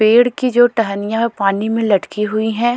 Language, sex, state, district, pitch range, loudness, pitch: Hindi, female, Goa, North and South Goa, 210-240 Hz, -16 LUFS, 220 Hz